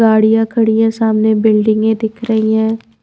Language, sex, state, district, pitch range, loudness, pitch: Hindi, female, Maharashtra, Washim, 220-225 Hz, -13 LUFS, 220 Hz